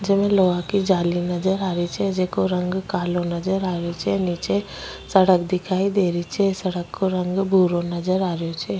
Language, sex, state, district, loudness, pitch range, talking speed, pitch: Rajasthani, female, Rajasthan, Nagaur, -22 LUFS, 175-190 Hz, 195 wpm, 185 Hz